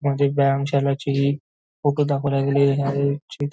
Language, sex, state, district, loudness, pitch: Marathi, male, Maharashtra, Nagpur, -21 LUFS, 140 Hz